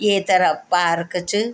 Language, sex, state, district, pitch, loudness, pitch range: Garhwali, female, Uttarakhand, Tehri Garhwal, 185 Hz, -19 LUFS, 175-205 Hz